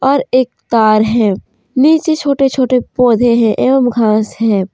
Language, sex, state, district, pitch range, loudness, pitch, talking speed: Hindi, female, Jharkhand, Deoghar, 220-265 Hz, -12 LUFS, 245 Hz, 150 wpm